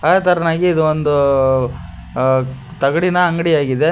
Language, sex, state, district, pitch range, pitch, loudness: Kannada, male, Karnataka, Koppal, 130-170 Hz, 150 Hz, -15 LUFS